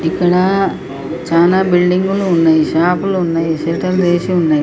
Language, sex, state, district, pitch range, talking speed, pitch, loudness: Telugu, female, Telangana, Nalgonda, 165-185 Hz, 155 wpm, 175 Hz, -14 LUFS